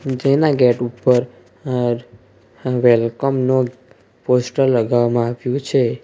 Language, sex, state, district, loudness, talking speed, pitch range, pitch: Gujarati, male, Gujarat, Valsad, -17 LUFS, 100 wpm, 120-130 Hz, 125 Hz